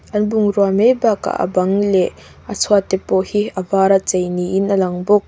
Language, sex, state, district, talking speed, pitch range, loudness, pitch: Mizo, female, Mizoram, Aizawl, 215 wpm, 185-205 Hz, -16 LUFS, 195 Hz